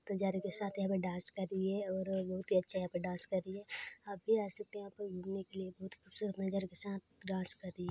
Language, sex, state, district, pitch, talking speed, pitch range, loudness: Hindi, female, Chhattisgarh, Balrampur, 195 Hz, 290 wpm, 185-200 Hz, -39 LUFS